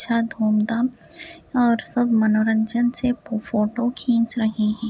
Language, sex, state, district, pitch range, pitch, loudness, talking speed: Hindi, female, Uttar Pradesh, Hamirpur, 220-240 Hz, 230 Hz, -21 LUFS, 125 wpm